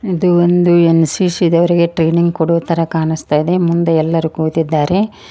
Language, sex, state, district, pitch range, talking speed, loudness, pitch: Kannada, female, Karnataka, Koppal, 160-175 Hz, 145 wpm, -13 LUFS, 170 Hz